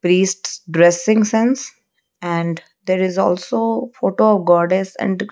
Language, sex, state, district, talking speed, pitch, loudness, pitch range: English, female, Odisha, Malkangiri, 135 wpm, 190 Hz, -17 LUFS, 175-220 Hz